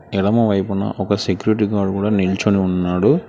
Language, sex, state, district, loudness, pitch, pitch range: Telugu, male, Telangana, Hyderabad, -18 LUFS, 100 Hz, 95-105 Hz